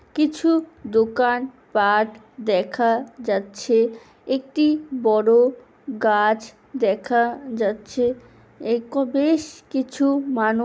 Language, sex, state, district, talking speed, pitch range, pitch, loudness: Bengali, female, West Bengal, Purulia, 85 wpm, 220-270 Hz, 235 Hz, -21 LUFS